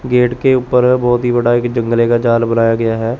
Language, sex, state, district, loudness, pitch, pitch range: Hindi, male, Chandigarh, Chandigarh, -13 LUFS, 120 Hz, 115-125 Hz